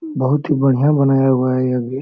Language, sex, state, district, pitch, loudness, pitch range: Hindi, male, Jharkhand, Sahebganj, 135 Hz, -16 LUFS, 130-145 Hz